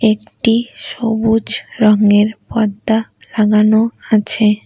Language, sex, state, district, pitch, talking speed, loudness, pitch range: Bengali, female, West Bengal, Cooch Behar, 220 Hz, 75 wpm, -14 LUFS, 210-225 Hz